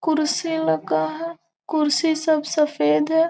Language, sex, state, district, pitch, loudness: Hindi, female, Bihar, Gopalganj, 310 Hz, -21 LUFS